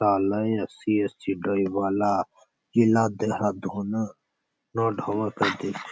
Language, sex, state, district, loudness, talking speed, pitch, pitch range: Garhwali, male, Uttarakhand, Uttarkashi, -26 LUFS, 60 wpm, 105 Hz, 100-110 Hz